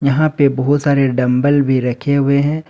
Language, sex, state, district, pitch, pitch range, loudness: Hindi, male, Jharkhand, Ranchi, 140 Hz, 130-145 Hz, -14 LUFS